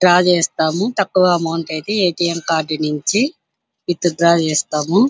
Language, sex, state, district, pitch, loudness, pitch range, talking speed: Telugu, male, Andhra Pradesh, Anantapur, 175 Hz, -17 LUFS, 160-185 Hz, 140 wpm